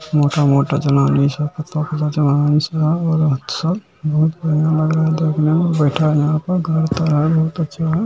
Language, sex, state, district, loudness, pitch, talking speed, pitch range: Hindi, male, Bihar, Jamui, -17 LUFS, 155 Hz, 170 wpm, 150-160 Hz